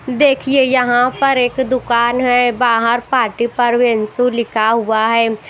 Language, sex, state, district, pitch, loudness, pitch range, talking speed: Hindi, female, Haryana, Rohtak, 245 Hz, -14 LUFS, 230-255 Hz, 130 wpm